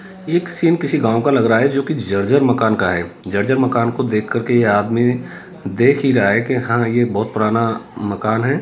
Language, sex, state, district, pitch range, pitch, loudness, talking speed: Hindi, male, Rajasthan, Jaipur, 110-135 Hz, 120 Hz, -17 LUFS, 225 wpm